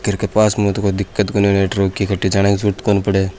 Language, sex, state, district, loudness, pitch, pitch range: Rajasthani, male, Rajasthan, Churu, -16 LUFS, 100 Hz, 95-105 Hz